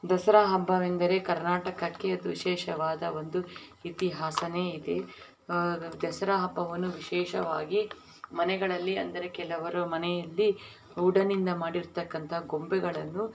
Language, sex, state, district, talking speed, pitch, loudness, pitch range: Kannada, female, Karnataka, Belgaum, 90 wpm, 175 Hz, -30 LUFS, 170-185 Hz